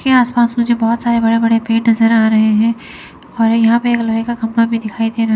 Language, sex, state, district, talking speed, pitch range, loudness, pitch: Hindi, female, Chandigarh, Chandigarh, 270 wpm, 225-235 Hz, -14 LUFS, 230 Hz